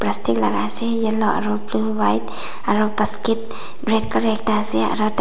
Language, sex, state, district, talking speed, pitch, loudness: Nagamese, female, Nagaland, Dimapur, 175 wpm, 210 Hz, -20 LUFS